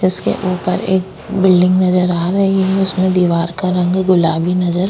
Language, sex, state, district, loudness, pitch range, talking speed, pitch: Hindi, female, Uttarakhand, Tehri Garhwal, -15 LUFS, 180-190 Hz, 185 wpm, 185 Hz